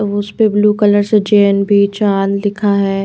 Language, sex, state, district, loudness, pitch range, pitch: Hindi, female, Chandigarh, Chandigarh, -13 LUFS, 200-210 Hz, 205 Hz